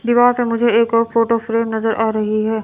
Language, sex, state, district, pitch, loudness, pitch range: Hindi, female, Chandigarh, Chandigarh, 230 Hz, -16 LUFS, 220-235 Hz